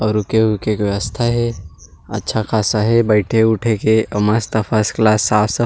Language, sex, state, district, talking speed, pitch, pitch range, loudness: Chhattisgarhi, male, Chhattisgarh, Rajnandgaon, 180 wpm, 110 Hz, 105-110 Hz, -16 LUFS